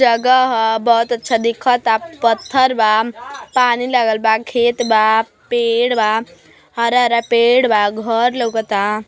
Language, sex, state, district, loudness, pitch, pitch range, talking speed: Bhojpuri, female, Uttar Pradesh, Gorakhpur, -15 LUFS, 235 Hz, 220-245 Hz, 160 wpm